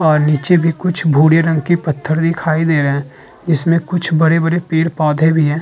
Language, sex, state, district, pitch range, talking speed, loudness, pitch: Hindi, male, Uttar Pradesh, Muzaffarnagar, 155-165 Hz, 205 wpm, -14 LUFS, 160 Hz